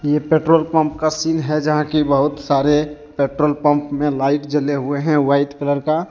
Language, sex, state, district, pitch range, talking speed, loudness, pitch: Hindi, male, Jharkhand, Deoghar, 145-155 Hz, 175 wpm, -18 LUFS, 150 Hz